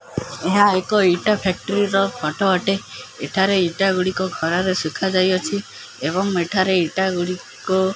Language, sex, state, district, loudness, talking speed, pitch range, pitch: Odia, male, Odisha, Khordha, -20 LUFS, 135 wpm, 180-195 Hz, 190 Hz